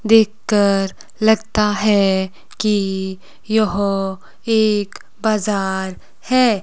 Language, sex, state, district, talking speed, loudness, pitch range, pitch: Hindi, female, Himachal Pradesh, Shimla, 80 wpm, -18 LUFS, 195-220 Hz, 210 Hz